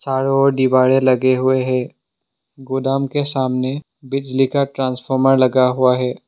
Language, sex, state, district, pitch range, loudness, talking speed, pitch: Hindi, male, Assam, Sonitpur, 130-135 Hz, -17 LUFS, 145 wpm, 130 Hz